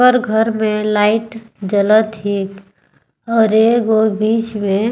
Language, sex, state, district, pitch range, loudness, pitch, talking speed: Sadri, female, Chhattisgarh, Jashpur, 205-225 Hz, -15 LUFS, 215 Hz, 120 wpm